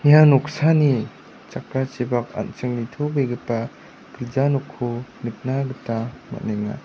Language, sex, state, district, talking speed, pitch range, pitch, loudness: Garo, male, Meghalaya, West Garo Hills, 85 wpm, 115-140 Hz, 125 Hz, -22 LUFS